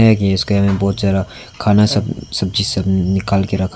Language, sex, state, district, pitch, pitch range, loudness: Hindi, male, Arunachal Pradesh, Longding, 100 Hz, 95-105 Hz, -16 LUFS